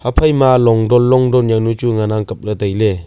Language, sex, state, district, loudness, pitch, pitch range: Wancho, male, Arunachal Pradesh, Longding, -13 LUFS, 115 Hz, 110-125 Hz